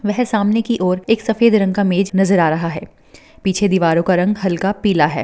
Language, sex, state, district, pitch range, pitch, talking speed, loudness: Hindi, female, Rajasthan, Churu, 180-210 Hz, 195 Hz, 220 wpm, -16 LUFS